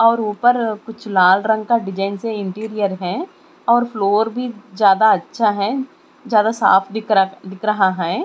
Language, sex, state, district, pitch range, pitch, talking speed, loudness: Hindi, female, Chandigarh, Chandigarh, 195-235 Hz, 215 Hz, 165 wpm, -17 LUFS